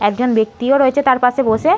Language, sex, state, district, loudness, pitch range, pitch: Bengali, female, West Bengal, Malda, -15 LUFS, 225-270 Hz, 250 Hz